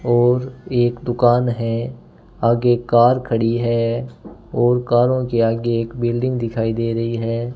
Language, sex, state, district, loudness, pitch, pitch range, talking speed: Hindi, male, Rajasthan, Bikaner, -18 LUFS, 120 Hz, 115-120 Hz, 145 wpm